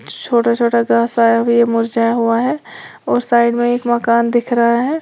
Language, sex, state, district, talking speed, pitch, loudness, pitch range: Hindi, female, Uttar Pradesh, Lalitpur, 205 wpm, 235 Hz, -15 LUFS, 235-240 Hz